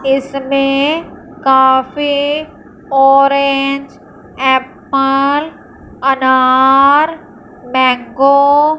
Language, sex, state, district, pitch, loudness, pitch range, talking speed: Hindi, female, Punjab, Fazilka, 275 Hz, -12 LUFS, 265-285 Hz, 50 wpm